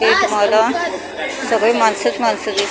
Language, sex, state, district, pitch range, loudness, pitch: Marathi, female, Maharashtra, Mumbai Suburban, 210-235 Hz, -16 LUFS, 225 Hz